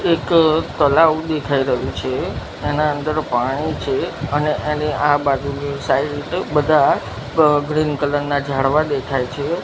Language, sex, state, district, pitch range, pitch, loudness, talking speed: Gujarati, male, Gujarat, Gandhinagar, 140-155 Hz, 145 Hz, -18 LUFS, 135 wpm